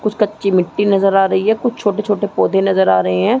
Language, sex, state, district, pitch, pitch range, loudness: Hindi, female, Uttar Pradesh, Muzaffarnagar, 200 Hz, 190-210 Hz, -15 LUFS